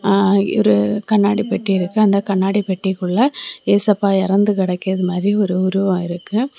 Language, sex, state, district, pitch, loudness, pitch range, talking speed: Tamil, female, Tamil Nadu, Kanyakumari, 195 Hz, -17 LUFS, 185-205 Hz, 125 wpm